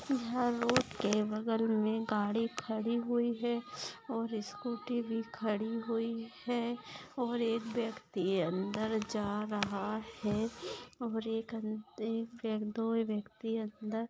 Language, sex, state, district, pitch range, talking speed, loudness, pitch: Hindi, female, Maharashtra, Nagpur, 215-235 Hz, 120 wpm, -36 LUFS, 225 Hz